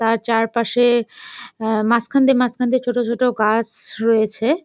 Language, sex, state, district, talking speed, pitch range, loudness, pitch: Bengali, female, West Bengal, Jalpaiguri, 155 wpm, 225-245 Hz, -18 LUFS, 235 Hz